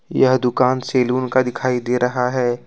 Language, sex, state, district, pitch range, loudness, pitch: Hindi, male, Jharkhand, Deoghar, 125-130 Hz, -18 LUFS, 125 Hz